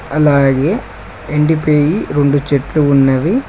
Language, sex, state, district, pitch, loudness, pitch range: Telugu, male, Telangana, Mahabubabad, 145 Hz, -13 LUFS, 135-150 Hz